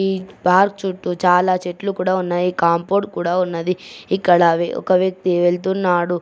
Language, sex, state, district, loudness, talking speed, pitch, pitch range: Telugu, male, Andhra Pradesh, Chittoor, -18 LUFS, 125 wpm, 180 Hz, 175-190 Hz